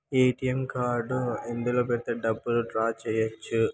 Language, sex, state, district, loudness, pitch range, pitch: Telugu, male, Andhra Pradesh, Anantapur, -28 LUFS, 115-125 Hz, 120 Hz